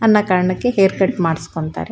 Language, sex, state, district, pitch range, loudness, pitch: Kannada, female, Karnataka, Shimoga, 180-210 Hz, -17 LUFS, 190 Hz